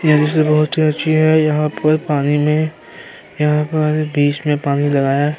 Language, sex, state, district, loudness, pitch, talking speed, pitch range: Hindi, male, Uttar Pradesh, Hamirpur, -16 LUFS, 150 Hz, 180 wpm, 145-155 Hz